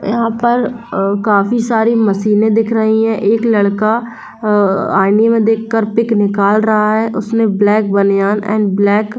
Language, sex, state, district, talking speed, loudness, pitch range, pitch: Hindi, female, Jharkhand, Jamtara, 150 wpm, -13 LUFS, 205-225 Hz, 215 Hz